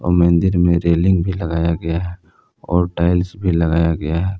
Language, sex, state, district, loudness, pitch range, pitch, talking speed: Hindi, male, Jharkhand, Palamu, -17 LUFS, 85-90 Hz, 85 Hz, 175 wpm